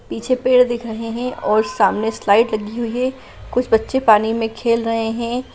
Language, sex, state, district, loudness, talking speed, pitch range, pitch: Hindi, female, Bihar, Saran, -18 LUFS, 205 wpm, 220-245 Hz, 230 Hz